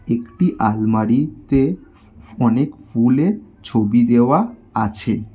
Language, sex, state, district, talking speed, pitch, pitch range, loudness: Bengali, male, West Bengal, Alipurduar, 90 wpm, 115 Hz, 110-135 Hz, -18 LUFS